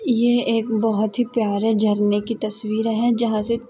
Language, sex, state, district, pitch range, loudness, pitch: Hindi, female, Maharashtra, Aurangabad, 215-235 Hz, -20 LUFS, 225 Hz